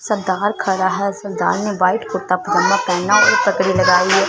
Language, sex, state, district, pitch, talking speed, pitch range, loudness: Hindi, female, Punjab, Fazilka, 195 Hz, 180 wpm, 185-205 Hz, -16 LUFS